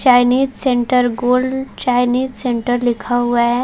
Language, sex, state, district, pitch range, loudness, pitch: Hindi, female, Chhattisgarh, Balrampur, 245-255 Hz, -16 LUFS, 245 Hz